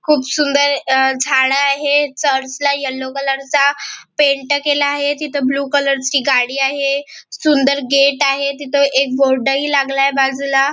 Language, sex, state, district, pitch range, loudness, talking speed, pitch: Marathi, female, Maharashtra, Nagpur, 270-285 Hz, -15 LUFS, 145 wpm, 280 Hz